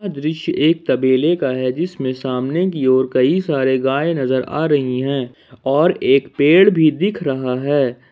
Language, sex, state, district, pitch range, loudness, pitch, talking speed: Hindi, male, Jharkhand, Ranchi, 130-160 Hz, -17 LUFS, 135 Hz, 175 wpm